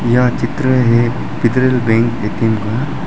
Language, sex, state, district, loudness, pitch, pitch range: Hindi, male, Arunachal Pradesh, Lower Dibang Valley, -15 LUFS, 120 Hz, 115-125 Hz